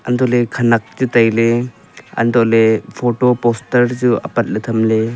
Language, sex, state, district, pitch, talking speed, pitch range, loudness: Wancho, male, Arunachal Pradesh, Longding, 120 Hz, 115 wpm, 115-125 Hz, -15 LUFS